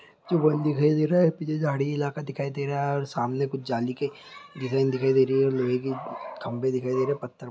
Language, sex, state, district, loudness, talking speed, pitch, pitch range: Hindi, male, Andhra Pradesh, Guntur, -26 LUFS, 255 wpm, 140 Hz, 130-150 Hz